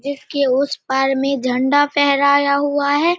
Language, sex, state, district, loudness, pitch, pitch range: Hindi, female, Bihar, Samastipur, -16 LUFS, 280 Hz, 270-285 Hz